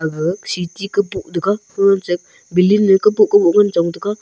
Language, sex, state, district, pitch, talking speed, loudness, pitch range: Wancho, male, Arunachal Pradesh, Longding, 195 Hz, 200 wpm, -16 LUFS, 175-205 Hz